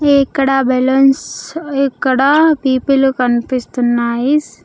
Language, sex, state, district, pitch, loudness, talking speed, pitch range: Telugu, female, Andhra Pradesh, Sri Satya Sai, 270 Hz, -13 LUFS, 65 wpm, 255-280 Hz